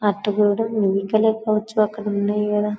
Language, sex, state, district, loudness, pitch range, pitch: Telugu, female, Telangana, Karimnagar, -20 LUFS, 205-215 Hz, 210 Hz